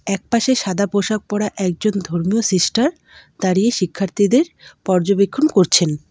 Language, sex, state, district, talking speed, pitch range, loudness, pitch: Bengali, female, West Bengal, Alipurduar, 110 wpm, 185-225 Hz, -18 LUFS, 200 Hz